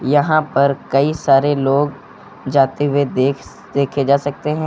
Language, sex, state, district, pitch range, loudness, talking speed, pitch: Hindi, male, Uttar Pradesh, Lucknow, 135-145 Hz, -16 LUFS, 165 wpm, 140 Hz